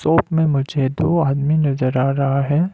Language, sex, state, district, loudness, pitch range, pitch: Hindi, male, Arunachal Pradesh, Lower Dibang Valley, -18 LUFS, 135-155 Hz, 140 Hz